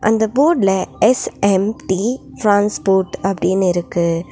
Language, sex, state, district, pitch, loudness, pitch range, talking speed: Tamil, female, Tamil Nadu, Nilgiris, 195 Hz, -16 LUFS, 185-220 Hz, 85 wpm